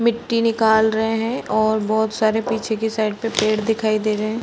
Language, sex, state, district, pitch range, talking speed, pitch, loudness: Hindi, female, Uttar Pradesh, Varanasi, 215-225 Hz, 205 wpm, 220 Hz, -19 LUFS